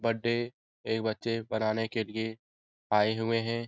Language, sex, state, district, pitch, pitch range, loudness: Hindi, male, Bihar, Jahanabad, 110 Hz, 110-115 Hz, -31 LUFS